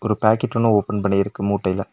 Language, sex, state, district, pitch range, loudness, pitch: Tamil, male, Tamil Nadu, Nilgiris, 100-110 Hz, -20 LUFS, 105 Hz